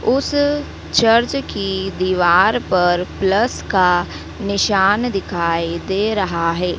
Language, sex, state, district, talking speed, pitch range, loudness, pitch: Hindi, female, Madhya Pradesh, Dhar, 105 wpm, 175-220 Hz, -17 LUFS, 195 Hz